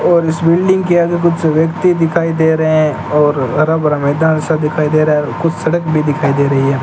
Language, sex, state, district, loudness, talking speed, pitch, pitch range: Hindi, male, Rajasthan, Bikaner, -13 LUFS, 245 wpm, 160 Hz, 150-165 Hz